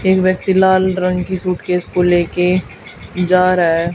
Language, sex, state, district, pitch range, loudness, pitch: Hindi, female, Haryana, Charkhi Dadri, 180-185 Hz, -15 LUFS, 180 Hz